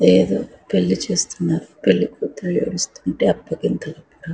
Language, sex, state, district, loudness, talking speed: Telugu, female, Andhra Pradesh, Anantapur, -20 LUFS, 95 wpm